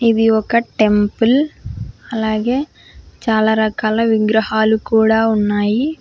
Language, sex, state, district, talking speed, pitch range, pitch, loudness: Telugu, female, Telangana, Hyderabad, 90 wpm, 215-230 Hz, 220 Hz, -16 LUFS